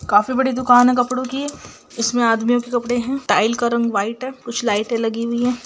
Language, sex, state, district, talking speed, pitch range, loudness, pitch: Hindi, female, Bihar, Darbhanga, 220 wpm, 230-255 Hz, -19 LUFS, 245 Hz